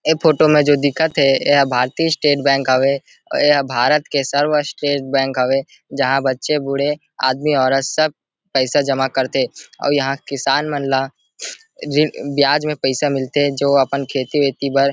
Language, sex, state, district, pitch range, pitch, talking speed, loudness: Chhattisgarhi, male, Chhattisgarh, Rajnandgaon, 135-150 Hz, 140 Hz, 165 wpm, -17 LUFS